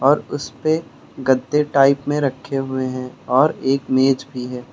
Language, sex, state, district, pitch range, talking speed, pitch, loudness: Hindi, male, Uttar Pradesh, Lucknow, 130-140 Hz, 165 wpm, 135 Hz, -19 LUFS